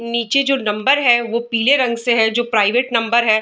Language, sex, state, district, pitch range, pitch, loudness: Hindi, female, Bihar, Darbhanga, 225-245 Hz, 235 Hz, -16 LUFS